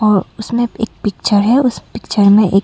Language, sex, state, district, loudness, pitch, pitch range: Hindi, female, Arunachal Pradesh, Longding, -14 LUFS, 210 Hz, 200-235 Hz